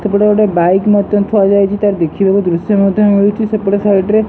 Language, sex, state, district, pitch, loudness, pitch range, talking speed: Odia, male, Odisha, Sambalpur, 200 Hz, -12 LUFS, 195-210 Hz, 195 wpm